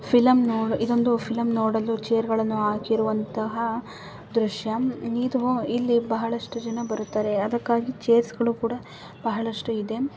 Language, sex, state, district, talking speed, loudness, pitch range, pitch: Kannada, female, Karnataka, Bijapur, 105 wpm, -25 LUFS, 220-235 Hz, 230 Hz